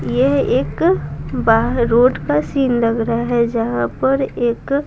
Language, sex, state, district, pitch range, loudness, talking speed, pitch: Hindi, female, Bihar, Patna, 230-265 Hz, -17 LUFS, 150 wpm, 235 Hz